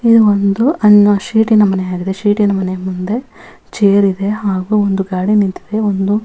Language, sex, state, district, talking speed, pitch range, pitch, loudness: Kannada, female, Karnataka, Bellary, 155 wpm, 190-215 Hz, 200 Hz, -13 LUFS